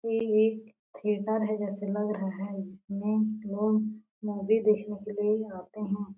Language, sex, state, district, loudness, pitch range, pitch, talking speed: Hindi, female, Chhattisgarh, Sarguja, -30 LUFS, 200-215 Hz, 210 Hz, 135 wpm